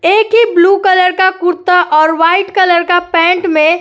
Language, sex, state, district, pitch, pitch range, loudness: Hindi, female, Uttar Pradesh, Jyotiba Phule Nagar, 360 Hz, 340-375 Hz, -10 LUFS